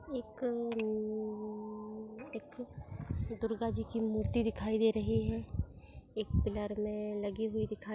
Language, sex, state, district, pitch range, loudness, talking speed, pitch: Hindi, female, Bihar, East Champaran, 210-225 Hz, -37 LUFS, 135 wpm, 215 Hz